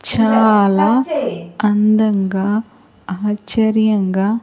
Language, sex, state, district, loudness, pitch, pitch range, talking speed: Telugu, female, Andhra Pradesh, Sri Satya Sai, -15 LUFS, 210 Hz, 195-220 Hz, 40 wpm